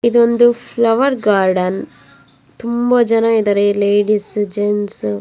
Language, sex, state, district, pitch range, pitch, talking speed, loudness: Kannada, female, Karnataka, Dakshina Kannada, 195-235 Hz, 205 Hz, 125 wpm, -15 LUFS